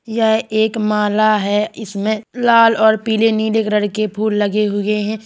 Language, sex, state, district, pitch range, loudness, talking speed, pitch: Hindi, male, Uttar Pradesh, Hamirpur, 210-220 Hz, -16 LUFS, 170 wpm, 215 Hz